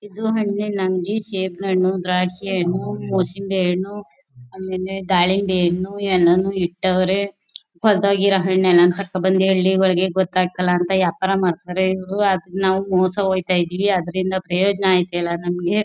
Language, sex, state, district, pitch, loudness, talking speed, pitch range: Kannada, female, Karnataka, Mysore, 190 Hz, -19 LUFS, 130 wpm, 180-195 Hz